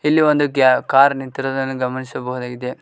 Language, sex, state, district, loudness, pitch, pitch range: Kannada, male, Karnataka, Koppal, -18 LUFS, 135 Hz, 125-140 Hz